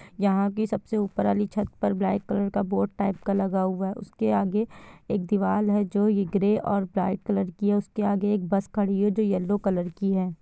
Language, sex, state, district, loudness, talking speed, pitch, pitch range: Hindi, female, Bihar, Gopalganj, -26 LUFS, 230 wpm, 200 Hz, 185-205 Hz